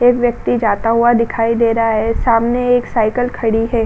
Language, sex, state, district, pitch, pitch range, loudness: Hindi, female, Uttar Pradesh, Budaun, 230 Hz, 225-245 Hz, -15 LUFS